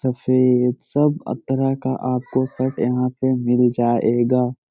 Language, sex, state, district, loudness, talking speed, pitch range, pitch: Hindi, male, Bihar, Gaya, -20 LUFS, 140 wpm, 125-130 Hz, 125 Hz